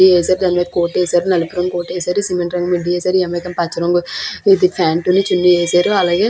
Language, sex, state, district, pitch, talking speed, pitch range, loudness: Telugu, female, Andhra Pradesh, Krishna, 180 Hz, 160 wpm, 175-185 Hz, -15 LUFS